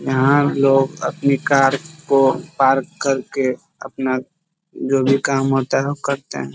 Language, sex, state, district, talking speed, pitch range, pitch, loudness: Hindi, male, Bihar, East Champaran, 155 wpm, 135-140 Hz, 135 Hz, -18 LUFS